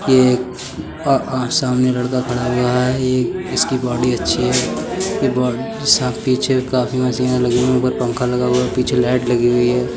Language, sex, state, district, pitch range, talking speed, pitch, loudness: Hindi, male, Uttar Pradesh, Budaun, 125-130 Hz, 170 wpm, 125 Hz, -17 LUFS